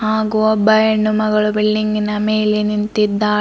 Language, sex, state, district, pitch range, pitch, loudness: Kannada, female, Karnataka, Bidar, 210-215 Hz, 215 Hz, -16 LUFS